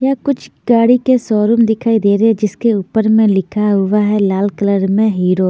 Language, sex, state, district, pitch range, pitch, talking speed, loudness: Hindi, female, Chandigarh, Chandigarh, 200-230 Hz, 210 Hz, 220 wpm, -13 LUFS